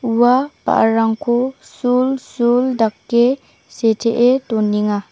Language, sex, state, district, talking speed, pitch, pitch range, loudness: Garo, female, Meghalaya, South Garo Hills, 70 wpm, 240 Hz, 225-255 Hz, -16 LUFS